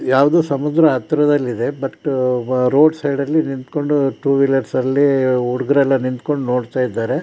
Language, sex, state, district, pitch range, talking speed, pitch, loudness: Kannada, male, Karnataka, Dakshina Kannada, 130-145 Hz, 125 wpm, 135 Hz, -17 LUFS